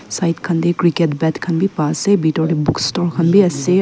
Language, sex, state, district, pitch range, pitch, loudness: Nagamese, female, Nagaland, Kohima, 160-180 Hz, 170 Hz, -16 LUFS